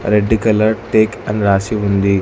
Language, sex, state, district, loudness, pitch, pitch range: Telugu, male, Telangana, Hyderabad, -15 LUFS, 105 Hz, 100-110 Hz